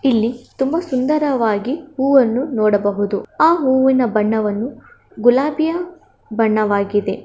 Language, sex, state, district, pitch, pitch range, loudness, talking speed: Kannada, female, Karnataka, Bellary, 250 Hz, 215-280 Hz, -17 LUFS, 85 wpm